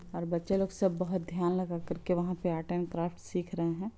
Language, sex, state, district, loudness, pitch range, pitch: Hindi, female, Bihar, Muzaffarpur, -33 LUFS, 170-185 Hz, 175 Hz